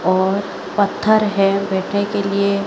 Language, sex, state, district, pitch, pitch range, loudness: Hindi, male, Chhattisgarh, Raipur, 200 Hz, 195-200 Hz, -18 LUFS